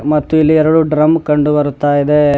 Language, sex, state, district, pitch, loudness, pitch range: Kannada, male, Karnataka, Bidar, 150 Hz, -12 LUFS, 145-155 Hz